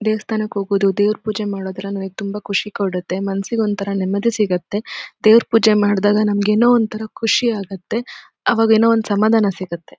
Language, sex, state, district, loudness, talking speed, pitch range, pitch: Kannada, female, Karnataka, Shimoga, -18 LUFS, 160 wpm, 195-220 Hz, 205 Hz